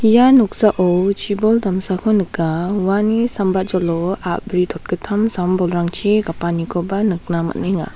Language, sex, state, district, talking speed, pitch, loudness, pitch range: Garo, female, Meghalaya, South Garo Hills, 100 wpm, 190 Hz, -17 LUFS, 175-210 Hz